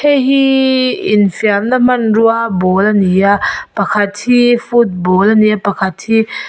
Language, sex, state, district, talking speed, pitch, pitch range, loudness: Mizo, female, Mizoram, Aizawl, 150 wpm, 220 Hz, 200-245 Hz, -12 LUFS